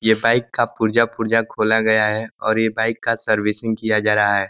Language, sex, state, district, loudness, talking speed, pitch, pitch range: Hindi, male, Uttar Pradesh, Ghazipur, -18 LUFS, 225 wpm, 110 Hz, 110-115 Hz